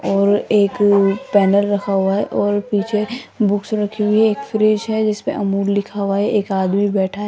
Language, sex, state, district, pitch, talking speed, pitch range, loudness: Hindi, female, Rajasthan, Jaipur, 205 Hz, 205 wpm, 200-215 Hz, -17 LUFS